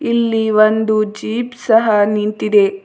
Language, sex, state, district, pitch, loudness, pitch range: Kannada, female, Karnataka, Bidar, 215 Hz, -15 LUFS, 210-225 Hz